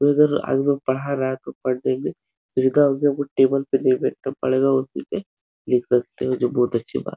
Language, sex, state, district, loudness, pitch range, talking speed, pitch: Hindi, male, Uttar Pradesh, Etah, -21 LUFS, 130-140 Hz, 165 wpm, 135 Hz